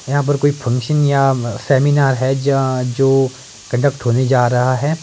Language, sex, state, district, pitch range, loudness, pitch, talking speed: Hindi, male, Himachal Pradesh, Shimla, 125-140 Hz, -16 LUFS, 135 Hz, 180 wpm